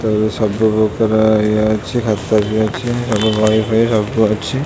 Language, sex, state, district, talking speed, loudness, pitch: Odia, male, Odisha, Khordha, 165 wpm, -15 LUFS, 110 Hz